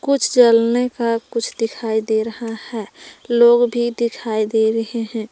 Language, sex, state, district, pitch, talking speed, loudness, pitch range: Hindi, female, Jharkhand, Palamu, 230 Hz, 160 wpm, -18 LUFS, 225-240 Hz